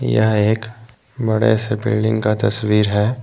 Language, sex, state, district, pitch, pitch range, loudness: Hindi, male, Jharkhand, Deoghar, 110 Hz, 105-110 Hz, -17 LUFS